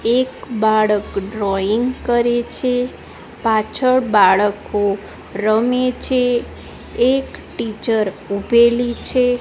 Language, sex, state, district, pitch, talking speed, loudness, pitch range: Gujarati, female, Gujarat, Gandhinagar, 230 Hz, 85 wpm, -17 LUFS, 210-250 Hz